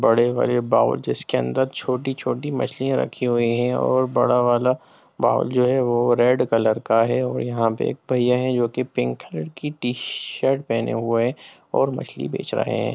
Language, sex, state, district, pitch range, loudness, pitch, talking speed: Hindi, male, Bihar, Jamui, 115-130 Hz, -21 LUFS, 125 Hz, 170 wpm